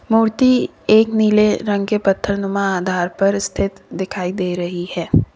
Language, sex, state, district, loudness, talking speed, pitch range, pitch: Hindi, female, Uttar Pradesh, Lalitpur, -18 LUFS, 155 wpm, 185-210 Hz, 195 Hz